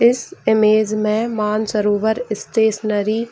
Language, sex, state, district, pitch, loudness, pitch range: Hindi, female, Bihar, Jahanabad, 215 Hz, -18 LUFS, 215-225 Hz